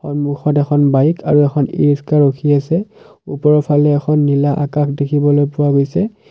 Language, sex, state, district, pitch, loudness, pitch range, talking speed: Assamese, male, Assam, Kamrup Metropolitan, 145 Hz, -14 LUFS, 145-150 Hz, 160 wpm